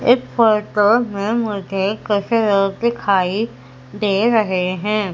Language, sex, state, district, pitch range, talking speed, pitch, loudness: Hindi, female, Madhya Pradesh, Umaria, 195-225 Hz, 115 wpm, 205 Hz, -18 LUFS